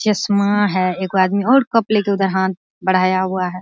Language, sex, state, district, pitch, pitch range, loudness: Hindi, female, Bihar, Araria, 190 Hz, 185-205 Hz, -17 LUFS